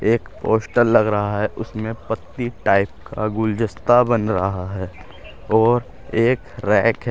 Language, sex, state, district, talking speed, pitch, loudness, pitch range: Hindi, male, Uttar Pradesh, Shamli, 145 wpm, 110 Hz, -20 LUFS, 100-115 Hz